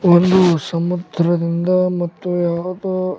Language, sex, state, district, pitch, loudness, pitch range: Kannada, male, Karnataka, Bellary, 175 Hz, -17 LUFS, 170-185 Hz